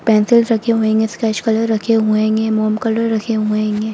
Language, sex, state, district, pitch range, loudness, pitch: Hindi, female, Bihar, Sitamarhi, 215-225 Hz, -16 LUFS, 220 Hz